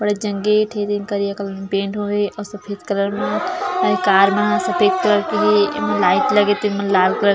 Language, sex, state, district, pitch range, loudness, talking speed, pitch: Chhattisgarhi, female, Chhattisgarh, Jashpur, 200-210 Hz, -18 LUFS, 220 wpm, 205 Hz